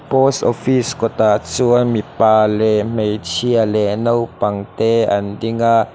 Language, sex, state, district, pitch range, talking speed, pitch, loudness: Mizo, male, Mizoram, Aizawl, 105-120 Hz, 120 wpm, 115 Hz, -16 LUFS